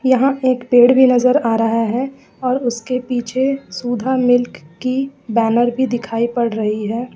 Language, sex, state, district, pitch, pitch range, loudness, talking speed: Hindi, female, Jharkhand, Ranchi, 245 Hz, 230-260 Hz, -17 LUFS, 165 wpm